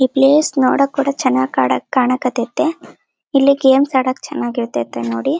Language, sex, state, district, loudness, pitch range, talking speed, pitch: Kannada, female, Karnataka, Bellary, -16 LUFS, 240-275 Hz, 135 wpm, 260 Hz